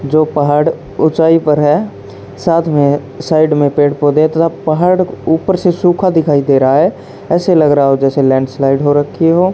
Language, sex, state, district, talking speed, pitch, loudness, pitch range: Hindi, male, Haryana, Charkhi Dadri, 180 wpm, 155 Hz, -12 LUFS, 140-165 Hz